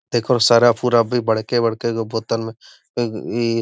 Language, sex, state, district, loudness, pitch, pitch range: Magahi, male, Bihar, Gaya, -18 LUFS, 115 Hz, 115-120 Hz